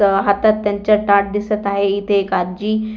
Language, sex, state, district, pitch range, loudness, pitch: Marathi, female, Maharashtra, Aurangabad, 200-210 Hz, -17 LUFS, 200 Hz